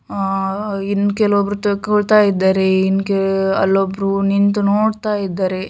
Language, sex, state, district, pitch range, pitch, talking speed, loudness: Kannada, female, Karnataka, Shimoga, 195-205 Hz, 195 Hz, 105 wpm, -16 LUFS